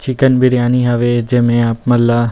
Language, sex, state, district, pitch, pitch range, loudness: Chhattisgarhi, male, Chhattisgarh, Rajnandgaon, 120 Hz, 120-125 Hz, -13 LUFS